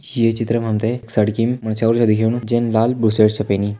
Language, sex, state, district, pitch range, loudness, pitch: Hindi, male, Uttarakhand, Tehri Garhwal, 110-115 Hz, -18 LUFS, 115 Hz